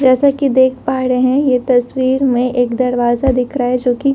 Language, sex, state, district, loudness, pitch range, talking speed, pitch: Hindi, female, Delhi, New Delhi, -14 LUFS, 250-265 Hz, 230 wpm, 255 Hz